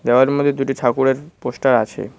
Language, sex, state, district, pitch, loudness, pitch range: Bengali, male, West Bengal, Cooch Behar, 135 Hz, -17 LUFS, 130-140 Hz